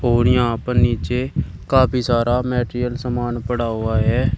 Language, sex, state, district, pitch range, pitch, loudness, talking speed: Hindi, male, Uttar Pradesh, Shamli, 120-125 Hz, 120 Hz, -19 LUFS, 150 wpm